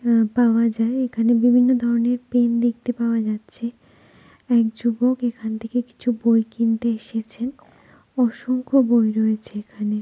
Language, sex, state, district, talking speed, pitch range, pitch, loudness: Bengali, female, West Bengal, Purulia, 130 wpm, 225-245 Hz, 235 Hz, -21 LUFS